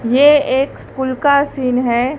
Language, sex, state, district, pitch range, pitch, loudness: Hindi, female, Gujarat, Gandhinagar, 250-285 Hz, 265 Hz, -15 LUFS